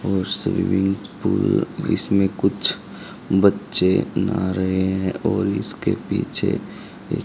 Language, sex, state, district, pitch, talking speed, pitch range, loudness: Hindi, male, Haryana, Charkhi Dadri, 95 Hz, 110 wpm, 95-100 Hz, -21 LUFS